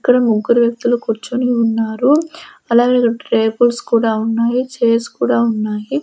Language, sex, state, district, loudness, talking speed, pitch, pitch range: Telugu, female, Andhra Pradesh, Sri Satya Sai, -15 LUFS, 130 wpm, 235 Hz, 225-245 Hz